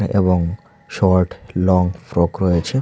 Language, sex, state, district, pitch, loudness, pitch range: Bengali, male, Tripura, Unakoti, 90 Hz, -18 LUFS, 85-95 Hz